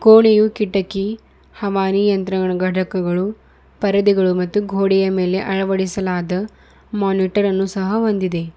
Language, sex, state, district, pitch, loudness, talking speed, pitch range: Kannada, male, Karnataka, Bidar, 195 Hz, -18 LUFS, 100 wpm, 185-205 Hz